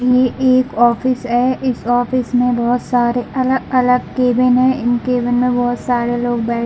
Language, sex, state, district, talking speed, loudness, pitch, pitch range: Hindi, female, Chhattisgarh, Bilaspur, 200 wpm, -15 LUFS, 245 Hz, 240-255 Hz